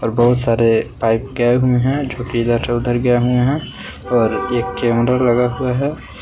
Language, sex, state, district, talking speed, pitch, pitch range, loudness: Hindi, male, Jharkhand, Palamu, 195 wpm, 120 Hz, 115-125 Hz, -17 LUFS